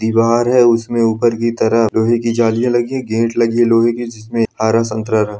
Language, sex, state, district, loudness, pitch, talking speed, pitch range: Hindi, male, Bihar, Muzaffarpur, -15 LUFS, 115 Hz, 235 wpm, 110-120 Hz